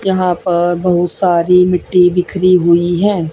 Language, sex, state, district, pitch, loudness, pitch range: Hindi, female, Haryana, Charkhi Dadri, 180 Hz, -12 LUFS, 175-185 Hz